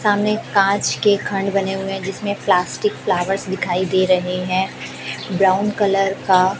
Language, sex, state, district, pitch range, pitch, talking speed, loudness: Hindi, female, Chhattisgarh, Raipur, 185-200 Hz, 195 Hz, 165 wpm, -19 LUFS